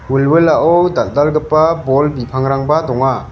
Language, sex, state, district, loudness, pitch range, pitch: Garo, male, Meghalaya, West Garo Hills, -13 LUFS, 135-155 Hz, 145 Hz